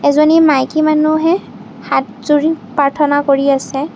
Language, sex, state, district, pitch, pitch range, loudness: Assamese, female, Assam, Kamrup Metropolitan, 295 Hz, 275-310 Hz, -13 LUFS